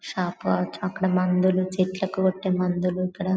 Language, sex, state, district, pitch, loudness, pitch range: Telugu, female, Telangana, Karimnagar, 185 Hz, -24 LUFS, 180-185 Hz